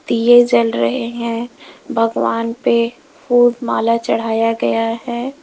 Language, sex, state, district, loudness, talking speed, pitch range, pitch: Hindi, female, Uttar Pradesh, Lalitpur, -16 LUFS, 120 wpm, 230-240 Hz, 230 Hz